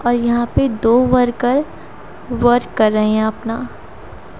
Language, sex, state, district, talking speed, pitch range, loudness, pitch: Hindi, female, Haryana, Rohtak, 135 wpm, 225-245 Hz, -16 LUFS, 240 Hz